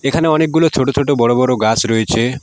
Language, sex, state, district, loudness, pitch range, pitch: Bengali, male, West Bengal, Alipurduar, -14 LUFS, 120-145 Hz, 130 Hz